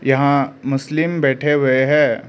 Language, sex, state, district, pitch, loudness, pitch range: Hindi, male, Arunachal Pradesh, Lower Dibang Valley, 140 Hz, -17 LUFS, 135-150 Hz